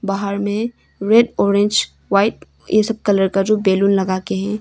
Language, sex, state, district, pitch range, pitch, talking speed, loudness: Hindi, female, Arunachal Pradesh, Longding, 195-215 Hz, 200 Hz, 180 wpm, -17 LUFS